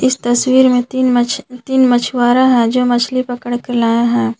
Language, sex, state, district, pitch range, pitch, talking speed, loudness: Hindi, female, Jharkhand, Garhwa, 240-255 Hz, 245 Hz, 180 wpm, -13 LUFS